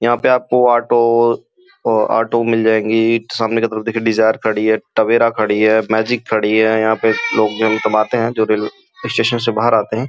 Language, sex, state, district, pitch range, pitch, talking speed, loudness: Hindi, male, Uttar Pradesh, Gorakhpur, 110-120 Hz, 115 Hz, 185 wpm, -15 LUFS